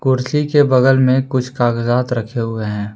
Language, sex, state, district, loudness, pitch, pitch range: Hindi, male, Jharkhand, Palamu, -16 LUFS, 125 Hz, 115-130 Hz